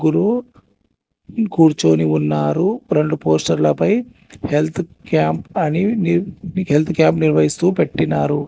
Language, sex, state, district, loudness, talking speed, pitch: Telugu, male, Telangana, Hyderabad, -17 LUFS, 105 wpm, 150 Hz